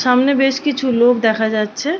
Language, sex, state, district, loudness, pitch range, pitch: Bengali, female, West Bengal, Paschim Medinipur, -16 LUFS, 225-270 Hz, 250 Hz